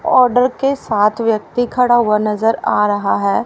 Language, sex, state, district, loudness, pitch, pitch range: Hindi, female, Haryana, Rohtak, -15 LUFS, 230 Hz, 210-250 Hz